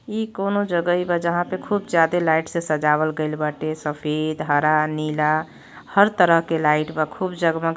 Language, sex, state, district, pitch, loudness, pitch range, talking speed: Bhojpuri, female, Uttar Pradesh, Deoria, 165 Hz, -21 LUFS, 155-175 Hz, 185 wpm